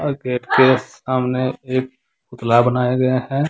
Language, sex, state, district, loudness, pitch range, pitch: Hindi, male, Jharkhand, Deoghar, -18 LUFS, 125-130 Hz, 130 Hz